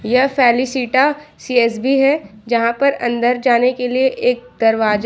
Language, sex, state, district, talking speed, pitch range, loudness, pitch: Hindi, female, Jharkhand, Ranchi, 140 wpm, 235-265 Hz, -16 LUFS, 245 Hz